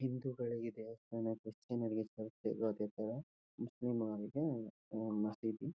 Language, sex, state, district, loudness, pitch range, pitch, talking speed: Kannada, male, Karnataka, Shimoga, -42 LUFS, 110-120 Hz, 110 Hz, 115 wpm